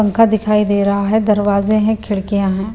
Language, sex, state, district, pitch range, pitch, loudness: Hindi, female, Bihar, Patna, 200-215 Hz, 210 Hz, -15 LUFS